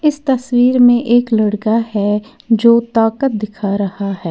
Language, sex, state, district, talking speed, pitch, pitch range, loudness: Hindi, female, Uttar Pradesh, Lalitpur, 155 wpm, 225 Hz, 210-245 Hz, -14 LUFS